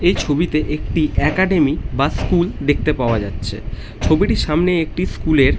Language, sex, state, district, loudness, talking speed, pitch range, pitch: Bengali, male, West Bengal, North 24 Parganas, -18 LUFS, 160 wpm, 120-170 Hz, 150 Hz